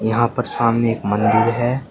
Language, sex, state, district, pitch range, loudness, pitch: Hindi, male, Uttar Pradesh, Shamli, 115-120 Hz, -17 LUFS, 115 Hz